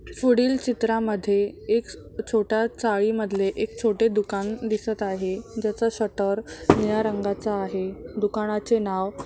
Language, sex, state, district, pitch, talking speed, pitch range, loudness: Marathi, female, Maharashtra, Mumbai Suburban, 215 Hz, 125 wpm, 200-225 Hz, -24 LUFS